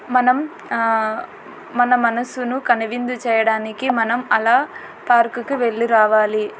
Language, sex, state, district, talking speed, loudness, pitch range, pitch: Telugu, female, Andhra Pradesh, Anantapur, 110 wpm, -18 LUFS, 225-250 Hz, 240 Hz